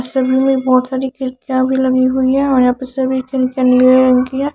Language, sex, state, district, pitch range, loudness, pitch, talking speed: Hindi, female, Haryana, Charkhi Dadri, 255-265 Hz, -14 LUFS, 260 Hz, 210 wpm